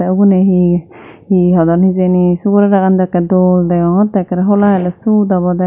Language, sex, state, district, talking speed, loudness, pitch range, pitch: Chakma, female, Tripura, Dhalai, 180 wpm, -11 LUFS, 180-195 Hz, 185 Hz